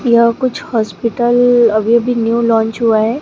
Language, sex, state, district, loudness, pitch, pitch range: Hindi, female, Maharashtra, Gondia, -13 LUFS, 235 Hz, 225-240 Hz